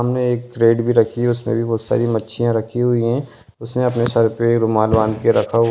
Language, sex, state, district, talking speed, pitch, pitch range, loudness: Hindi, male, Bihar, Lakhisarai, 240 wpm, 115 Hz, 115-120 Hz, -17 LUFS